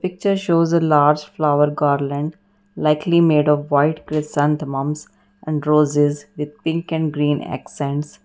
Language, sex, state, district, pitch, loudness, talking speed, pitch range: English, female, Karnataka, Bangalore, 150 Hz, -19 LUFS, 130 wpm, 145-165 Hz